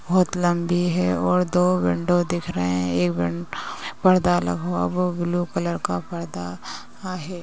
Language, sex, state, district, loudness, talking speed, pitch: Hindi, female, Uttar Pradesh, Ghazipur, -23 LUFS, 175 wpm, 170 Hz